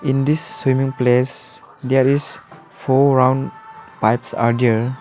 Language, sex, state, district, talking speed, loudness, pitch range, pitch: English, male, Arunachal Pradesh, Lower Dibang Valley, 130 wpm, -17 LUFS, 130-150 Hz, 135 Hz